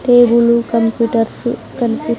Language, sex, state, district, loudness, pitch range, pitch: Telugu, female, Andhra Pradesh, Sri Satya Sai, -14 LUFS, 230-240 Hz, 235 Hz